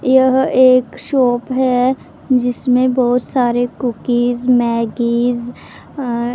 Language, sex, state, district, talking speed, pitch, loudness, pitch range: Hindi, female, Punjab, Pathankot, 95 wpm, 250 Hz, -15 LUFS, 240-255 Hz